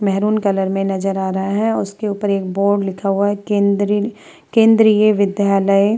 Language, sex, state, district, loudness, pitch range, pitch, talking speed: Hindi, female, Uttar Pradesh, Muzaffarnagar, -16 LUFS, 195-210 Hz, 200 Hz, 190 wpm